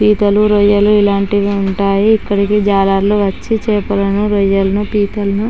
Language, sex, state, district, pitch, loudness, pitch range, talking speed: Telugu, female, Andhra Pradesh, Chittoor, 205 Hz, -13 LUFS, 200-210 Hz, 110 wpm